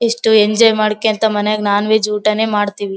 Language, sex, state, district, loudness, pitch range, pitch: Kannada, female, Karnataka, Bellary, -14 LUFS, 210-220 Hz, 215 Hz